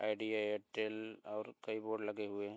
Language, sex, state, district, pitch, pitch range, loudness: Hindi, male, Bihar, Begusarai, 105 Hz, 105-110 Hz, -41 LUFS